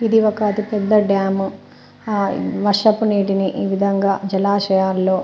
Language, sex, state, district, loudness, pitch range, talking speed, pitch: Telugu, female, Telangana, Nalgonda, -18 LUFS, 195-210 Hz, 125 wpm, 200 Hz